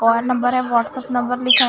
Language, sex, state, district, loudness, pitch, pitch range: Hindi, female, Maharashtra, Gondia, -18 LUFS, 250 Hz, 240-255 Hz